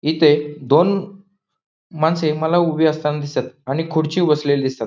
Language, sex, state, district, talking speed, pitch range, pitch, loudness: Marathi, male, Maharashtra, Pune, 135 wpm, 150-170 Hz, 155 Hz, -18 LUFS